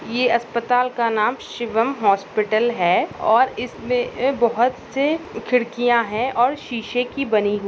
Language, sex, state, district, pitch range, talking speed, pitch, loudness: Hindi, female, Maharashtra, Nagpur, 225-250 Hz, 150 wpm, 240 Hz, -20 LUFS